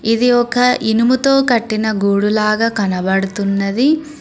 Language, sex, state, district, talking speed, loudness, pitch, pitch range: Telugu, female, Telangana, Mahabubabad, 100 wpm, -15 LUFS, 225 Hz, 200-250 Hz